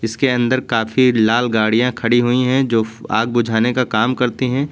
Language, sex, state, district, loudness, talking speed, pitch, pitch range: Hindi, male, Uttar Pradesh, Lucknow, -16 LUFS, 190 wpm, 120 Hz, 115-125 Hz